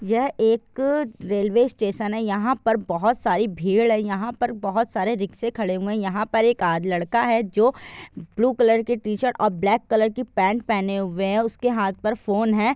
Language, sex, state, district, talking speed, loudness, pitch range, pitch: Hindi, female, Bihar, Jahanabad, 205 wpm, -22 LUFS, 200-235 Hz, 220 Hz